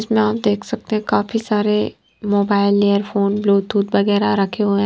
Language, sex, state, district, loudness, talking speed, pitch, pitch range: Hindi, female, Himachal Pradesh, Shimla, -18 LUFS, 160 wpm, 205 Hz, 200-215 Hz